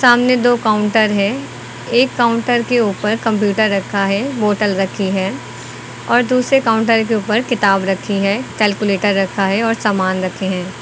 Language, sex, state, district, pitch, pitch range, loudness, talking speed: Hindi, female, Uttar Pradesh, Lucknow, 210 Hz, 195-235 Hz, -15 LUFS, 160 wpm